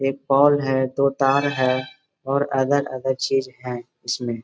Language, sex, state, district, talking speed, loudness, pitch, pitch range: Hindi, male, Bihar, Gaya, 160 wpm, -21 LUFS, 135 Hz, 130-140 Hz